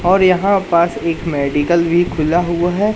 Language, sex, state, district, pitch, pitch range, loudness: Hindi, male, Madhya Pradesh, Katni, 175 Hz, 165-185 Hz, -15 LUFS